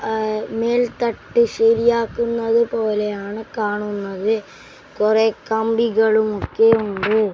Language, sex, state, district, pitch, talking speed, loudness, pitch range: Malayalam, male, Kerala, Kasaragod, 220 Hz, 65 wpm, -19 LUFS, 210-230 Hz